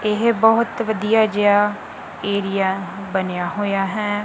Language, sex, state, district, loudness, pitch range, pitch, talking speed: Punjabi, female, Punjab, Kapurthala, -19 LUFS, 195-215 Hz, 205 Hz, 115 wpm